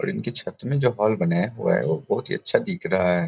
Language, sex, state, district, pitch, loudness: Hindi, male, Bihar, Samastipur, 125 Hz, -24 LUFS